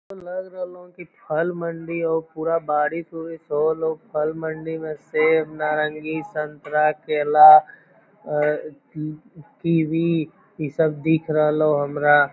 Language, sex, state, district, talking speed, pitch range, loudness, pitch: Magahi, male, Bihar, Lakhisarai, 120 wpm, 150-165 Hz, -21 LUFS, 155 Hz